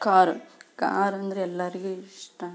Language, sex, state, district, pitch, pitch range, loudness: Kannada, female, Karnataka, Belgaum, 190 Hz, 180-195 Hz, -26 LUFS